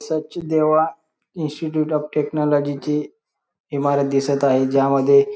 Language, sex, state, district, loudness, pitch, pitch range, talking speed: Marathi, male, Maharashtra, Sindhudurg, -20 LUFS, 150 Hz, 140-155 Hz, 110 wpm